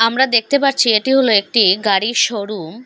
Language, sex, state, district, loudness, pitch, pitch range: Bengali, female, Assam, Hailakandi, -14 LUFS, 230 Hz, 210-265 Hz